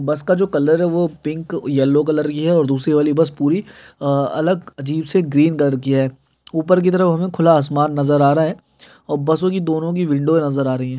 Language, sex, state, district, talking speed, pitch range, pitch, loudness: Hindi, male, Bihar, Muzaffarpur, 235 wpm, 145-170 Hz, 155 Hz, -17 LUFS